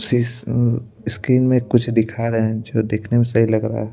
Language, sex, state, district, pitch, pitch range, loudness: Hindi, male, Madhya Pradesh, Bhopal, 115 Hz, 110-120 Hz, -19 LUFS